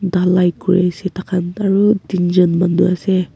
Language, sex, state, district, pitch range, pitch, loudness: Nagamese, female, Nagaland, Kohima, 180-190 Hz, 180 Hz, -15 LUFS